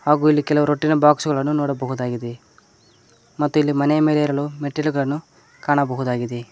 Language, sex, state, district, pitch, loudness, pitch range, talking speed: Kannada, male, Karnataka, Koppal, 145 Hz, -20 LUFS, 125-150 Hz, 130 wpm